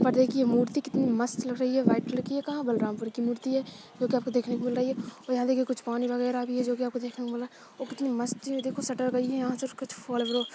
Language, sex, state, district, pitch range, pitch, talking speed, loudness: Hindi, female, Chhattisgarh, Balrampur, 240-260 Hz, 250 Hz, 285 wpm, -29 LUFS